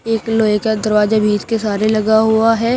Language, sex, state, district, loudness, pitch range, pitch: Hindi, female, Uttar Pradesh, Shamli, -15 LUFS, 215-225 Hz, 220 Hz